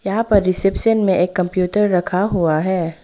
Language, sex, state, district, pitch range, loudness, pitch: Hindi, female, Arunachal Pradesh, Lower Dibang Valley, 180-205 Hz, -17 LUFS, 185 Hz